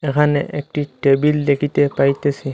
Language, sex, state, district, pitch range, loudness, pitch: Bengali, male, Assam, Hailakandi, 140-150 Hz, -18 LUFS, 145 Hz